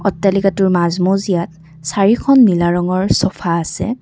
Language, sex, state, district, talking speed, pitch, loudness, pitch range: Assamese, female, Assam, Kamrup Metropolitan, 120 wpm, 185 Hz, -15 LUFS, 175-200 Hz